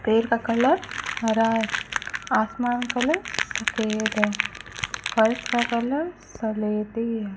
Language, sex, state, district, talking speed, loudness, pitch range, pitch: Hindi, female, Rajasthan, Bikaner, 115 wpm, -24 LUFS, 220-245 Hz, 230 Hz